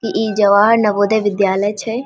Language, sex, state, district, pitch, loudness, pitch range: Maithili, female, Bihar, Vaishali, 210 Hz, -14 LUFS, 205-220 Hz